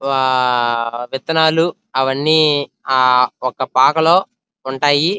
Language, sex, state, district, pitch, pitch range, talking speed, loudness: Telugu, male, Andhra Pradesh, Krishna, 135 Hz, 130-160 Hz, 115 wpm, -15 LUFS